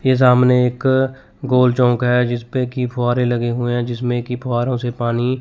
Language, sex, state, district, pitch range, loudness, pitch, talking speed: Hindi, male, Chandigarh, Chandigarh, 120-125 Hz, -17 LUFS, 125 Hz, 200 wpm